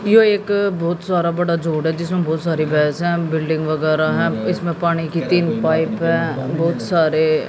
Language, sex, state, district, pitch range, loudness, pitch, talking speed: Hindi, female, Haryana, Jhajjar, 160-175 Hz, -18 LUFS, 165 Hz, 185 wpm